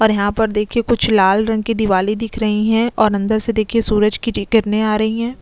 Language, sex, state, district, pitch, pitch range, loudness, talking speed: Hindi, female, Chhattisgarh, Sukma, 220 Hz, 210-225 Hz, -16 LUFS, 255 wpm